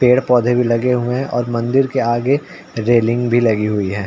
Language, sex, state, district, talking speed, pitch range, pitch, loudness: Hindi, male, Uttar Pradesh, Ghazipur, 205 wpm, 115-125 Hz, 120 Hz, -16 LUFS